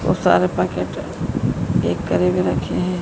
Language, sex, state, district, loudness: Hindi, female, Madhya Pradesh, Dhar, -20 LUFS